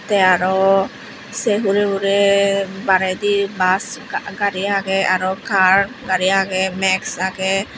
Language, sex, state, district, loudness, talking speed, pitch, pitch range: Chakma, female, Tripura, Unakoti, -17 LUFS, 115 wpm, 195 Hz, 190-200 Hz